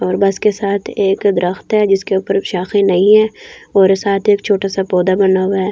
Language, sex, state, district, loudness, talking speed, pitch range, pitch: Hindi, female, Delhi, New Delhi, -14 LUFS, 210 wpm, 190-200 Hz, 195 Hz